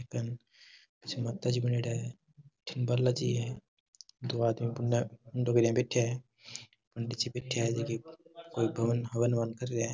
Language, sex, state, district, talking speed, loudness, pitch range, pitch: Marwari, male, Rajasthan, Nagaur, 145 wpm, -32 LUFS, 115-125 Hz, 120 Hz